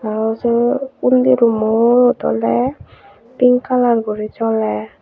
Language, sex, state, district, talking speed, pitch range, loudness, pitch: Chakma, female, Tripura, Unakoti, 110 wpm, 200-245 Hz, -15 LUFS, 225 Hz